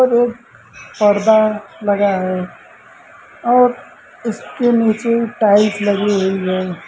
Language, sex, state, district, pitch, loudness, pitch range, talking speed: Hindi, male, Uttar Pradesh, Lucknow, 210 Hz, -16 LUFS, 200-235 Hz, 95 wpm